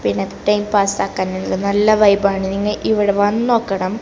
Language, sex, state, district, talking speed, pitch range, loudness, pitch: Malayalam, female, Kerala, Kasaragod, 150 wpm, 195-210 Hz, -17 LUFS, 200 Hz